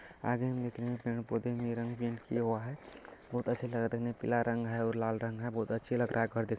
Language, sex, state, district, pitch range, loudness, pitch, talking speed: Hindi, male, Bihar, Jahanabad, 115-120 Hz, -35 LUFS, 120 Hz, 280 wpm